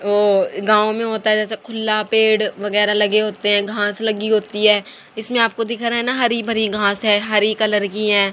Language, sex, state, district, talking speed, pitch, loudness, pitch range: Hindi, female, Haryana, Jhajjar, 215 wpm, 215 Hz, -17 LUFS, 210-220 Hz